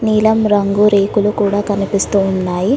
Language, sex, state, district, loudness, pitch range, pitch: Telugu, female, Telangana, Hyderabad, -14 LUFS, 200-210 Hz, 205 Hz